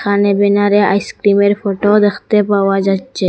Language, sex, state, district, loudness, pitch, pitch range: Bengali, female, Assam, Hailakandi, -13 LUFS, 200 Hz, 200-205 Hz